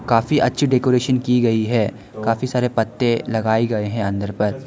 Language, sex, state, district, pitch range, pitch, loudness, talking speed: Hindi, male, Arunachal Pradesh, Lower Dibang Valley, 110-125 Hz, 115 Hz, -19 LUFS, 180 wpm